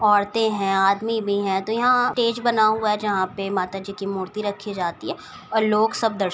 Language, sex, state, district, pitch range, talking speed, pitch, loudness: Hindi, female, Uttar Pradesh, Budaun, 195-220 Hz, 235 wpm, 205 Hz, -22 LUFS